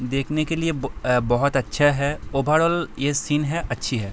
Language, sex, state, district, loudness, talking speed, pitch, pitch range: Hindi, male, Uttar Pradesh, Hamirpur, -22 LUFS, 190 wpm, 140 Hz, 125-155 Hz